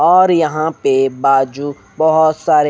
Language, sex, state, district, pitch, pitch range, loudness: Hindi, male, Haryana, Rohtak, 150 Hz, 135-160 Hz, -14 LUFS